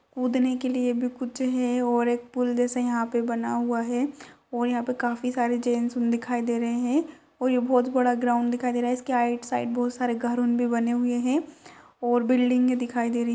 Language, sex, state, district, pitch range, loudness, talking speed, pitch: Hindi, female, Rajasthan, Churu, 240-250 Hz, -25 LUFS, 230 wpm, 245 Hz